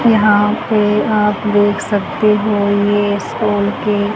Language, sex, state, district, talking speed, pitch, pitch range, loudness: Hindi, female, Haryana, Charkhi Dadri, 130 wpm, 210 Hz, 205-215 Hz, -14 LUFS